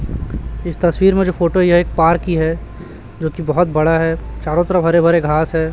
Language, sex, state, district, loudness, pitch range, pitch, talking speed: Hindi, male, Chhattisgarh, Raipur, -16 LUFS, 160-175 Hz, 170 Hz, 220 wpm